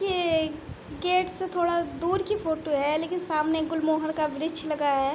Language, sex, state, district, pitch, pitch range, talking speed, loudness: Hindi, female, Uttar Pradesh, Budaun, 320 Hz, 310-360 Hz, 175 wpm, -27 LUFS